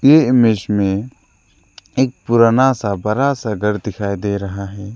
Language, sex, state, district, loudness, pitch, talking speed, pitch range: Hindi, male, Arunachal Pradesh, Lower Dibang Valley, -16 LUFS, 105 Hz, 155 wpm, 100-125 Hz